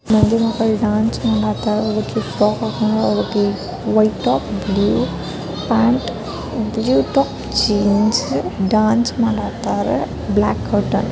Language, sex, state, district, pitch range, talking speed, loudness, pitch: Kannada, male, Karnataka, Dharwad, 205-220 Hz, 90 wpm, -18 LUFS, 215 Hz